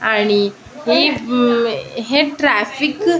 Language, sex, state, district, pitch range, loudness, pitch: Marathi, female, Maharashtra, Aurangabad, 210-295 Hz, -16 LUFS, 240 Hz